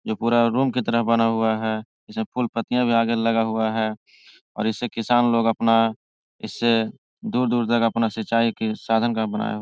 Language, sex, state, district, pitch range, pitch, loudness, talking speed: Hindi, male, Bihar, Jahanabad, 110-115 Hz, 115 Hz, -22 LUFS, 195 wpm